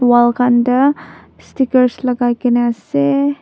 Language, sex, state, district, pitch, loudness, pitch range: Nagamese, female, Nagaland, Dimapur, 245 Hz, -14 LUFS, 240-250 Hz